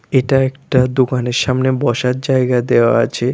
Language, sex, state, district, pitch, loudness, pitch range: Bengali, male, Tripura, West Tripura, 130 Hz, -15 LUFS, 125-130 Hz